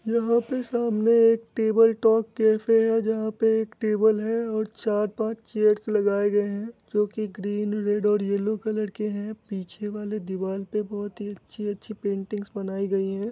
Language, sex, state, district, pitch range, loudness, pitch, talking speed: Hindi, male, Bihar, Muzaffarpur, 205-225 Hz, -25 LUFS, 215 Hz, 185 wpm